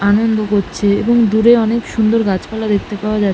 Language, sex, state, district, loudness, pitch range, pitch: Bengali, female, West Bengal, Malda, -14 LUFS, 205-225 Hz, 215 Hz